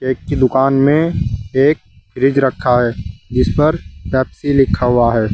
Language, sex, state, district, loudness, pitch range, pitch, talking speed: Hindi, male, Uttar Pradesh, Saharanpur, -15 LUFS, 115-135 Hz, 130 Hz, 155 wpm